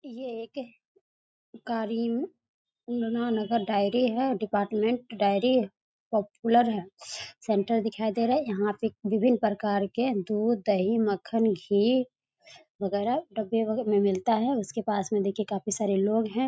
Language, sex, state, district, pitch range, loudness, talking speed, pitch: Hindi, female, Bihar, East Champaran, 205-240 Hz, -27 LUFS, 125 wpm, 225 Hz